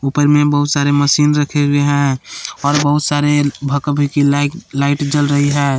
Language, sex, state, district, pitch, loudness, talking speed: Hindi, male, Jharkhand, Palamu, 145 Hz, -14 LUFS, 185 wpm